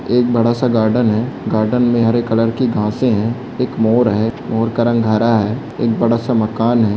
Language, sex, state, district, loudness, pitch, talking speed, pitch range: Hindi, male, Rajasthan, Churu, -16 LUFS, 115 Hz, 215 wpm, 110-120 Hz